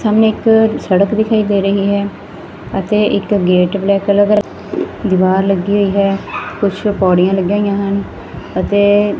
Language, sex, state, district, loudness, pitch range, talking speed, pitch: Punjabi, female, Punjab, Fazilka, -14 LUFS, 195-210 Hz, 145 wpm, 200 Hz